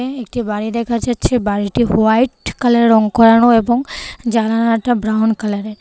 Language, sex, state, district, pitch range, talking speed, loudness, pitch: Bengali, female, Tripura, West Tripura, 220-240 Hz, 145 wpm, -15 LUFS, 230 Hz